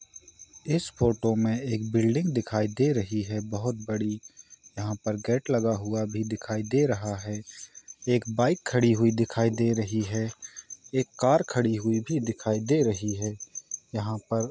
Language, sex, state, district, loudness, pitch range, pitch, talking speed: Hindi, male, Jharkhand, Jamtara, -27 LUFS, 110-120 Hz, 110 Hz, 170 wpm